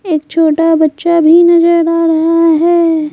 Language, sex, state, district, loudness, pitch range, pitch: Hindi, female, Bihar, Patna, -9 LUFS, 320-335 Hz, 330 Hz